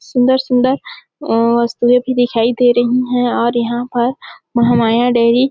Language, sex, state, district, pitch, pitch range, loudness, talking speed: Hindi, female, Chhattisgarh, Sarguja, 245 Hz, 235-250 Hz, -14 LUFS, 155 wpm